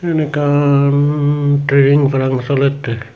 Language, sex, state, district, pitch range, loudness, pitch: Chakma, male, Tripura, Unakoti, 140-145 Hz, -14 LUFS, 140 Hz